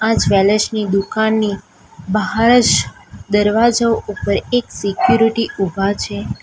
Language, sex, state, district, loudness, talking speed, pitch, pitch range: Gujarati, female, Gujarat, Valsad, -16 LUFS, 110 wpm, 210 Hz, 195-225 Hz